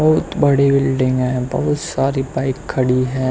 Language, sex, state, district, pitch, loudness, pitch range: Hindi, male, Haryana, Rohtak, 135 Hz, -17 LUFS, 130-140 Hz